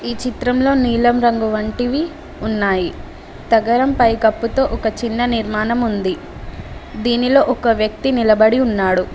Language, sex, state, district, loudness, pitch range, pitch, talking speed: Telugu, female, Telangana, Mahabubabad, -16 LUFS, 220-245 Hz, 235 Hz, 110 wpm